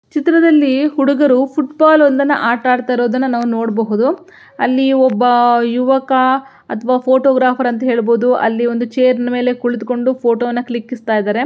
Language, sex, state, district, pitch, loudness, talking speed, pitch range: Kannada, female, Karnataka, Belgaum, 250 Hz, -14 LUFS, 125 wpm, 240-270 Hz